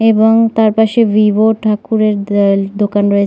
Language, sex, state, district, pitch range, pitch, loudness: Bengali, female, West Bengal, North 24 Parganas, 205-220 Hz, 215 Hz, -12 LUFS